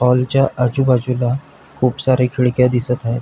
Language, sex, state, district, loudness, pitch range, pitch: Marathi, male, Maharashtra, Pune, -17 LUFS, 125-130 Hz, 125 Hz